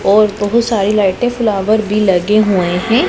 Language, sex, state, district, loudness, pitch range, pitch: Hindi, female, Punjab, Pathankot, -13 LUFS, 195-220 Hz, 210 Hz